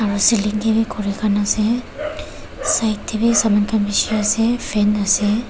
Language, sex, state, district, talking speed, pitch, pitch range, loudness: Nagamese, female, Nagaland, Kohima, 130 wpm, 215 Hz, 210-230 Hz, -18 LUFS